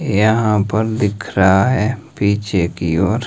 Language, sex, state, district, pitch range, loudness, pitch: Hindi, male, Himachal Pradesh, Shimla, 95-110 Hz, -16 LUFS, 105 Hz